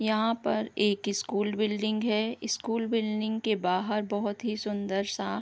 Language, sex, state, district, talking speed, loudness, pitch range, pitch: Hindi, female, Bihar, East Champaran, 155 wpm, -29 LUFS, 205-220 Hz, 215 Hz